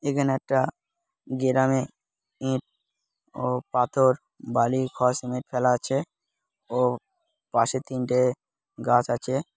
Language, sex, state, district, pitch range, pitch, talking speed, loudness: Bengali, male, West Bengal, Malda, 125-135 Hz, 130 Hz, 105 wpm, -25 LUFS